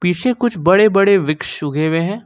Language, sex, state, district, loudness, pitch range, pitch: Hindi, male, Jharkhand, Ranchi, -15 LUFS, 160-210 Hz, 185 Hz